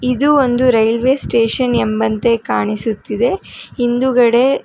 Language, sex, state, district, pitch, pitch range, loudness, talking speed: Kannada, female, Karnataka, Bangalore, 240 Hz, 225-255 Hz, -14 LUFS, 90 wpm